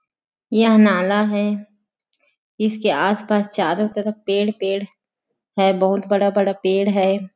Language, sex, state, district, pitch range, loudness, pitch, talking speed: Hindi, female, Chhattisgarh, Sarguja, 195-210 Hz, -19 LUFS, 205 Hz, 115 wpm